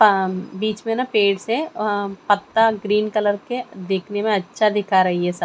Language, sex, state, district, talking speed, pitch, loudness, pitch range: Hindi, female, Chandigarh, Chandigarh, 200 wpm, 205 Hz, -20 LUFS, 195-215 Hz